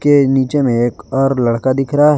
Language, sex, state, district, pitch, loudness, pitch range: Hindi, male, Jharkhand, Garhwa, 135 Hz, -14 LUFS, 120-145 Hz